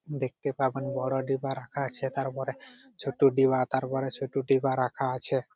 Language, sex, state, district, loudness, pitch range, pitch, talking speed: Bengali, male, West Bengal, Purulia, -29 LUFS, 130-135 Hz, 135 Hz, 150 wpm